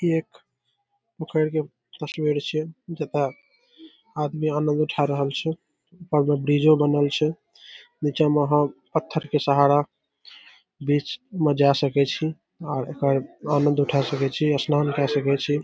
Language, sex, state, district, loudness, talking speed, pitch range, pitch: Maithili, male, Bihar, Saharsa, -23 LUFS, 140 wpm, 145-155 Hz, 150 Hz